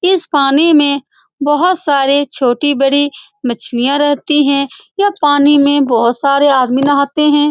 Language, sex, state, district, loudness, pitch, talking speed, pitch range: Hindi, female, Bihar, Saran, -12 LUFS, 285 Hz, 135 wpm, 275-295 Hz